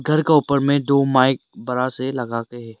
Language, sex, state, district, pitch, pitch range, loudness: Hindi, male, Arunachal Pradesh, Lower Dibang Valley, 130 Hz, 125-140 Hz, -19 LUFS